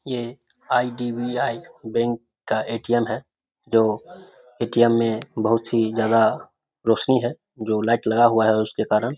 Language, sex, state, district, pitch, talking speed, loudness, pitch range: Hindi, male, Bihar, Samastipur, 115 Hz, 150 wpm, -22 LUFS, 110-120 Hz